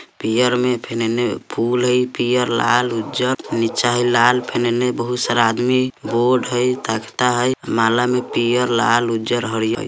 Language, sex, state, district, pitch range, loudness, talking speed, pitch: Bajjika, male, Bihar, Vaishali, 115-125 Hz, -18 LUFS, 165 wpm, 120 Hz